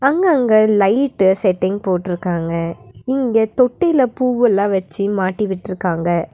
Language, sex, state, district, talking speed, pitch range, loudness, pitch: Tamil, female, Tamil Nadu, Nilgiris, 95 wpm, 185-250 Hz, -17 LUFS, 200 Hz